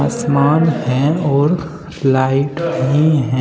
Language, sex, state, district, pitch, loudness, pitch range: Hindi, male, Uttar Pradesh, Shamli, 145 Hz, -15 LUFS, 135-160 Hz